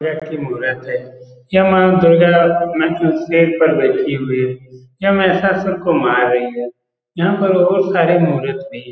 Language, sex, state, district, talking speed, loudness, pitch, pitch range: Hindi, male, Bihar, Saran, 160 wpm, -15 LUFS, 165 Hz, 130-180 Hz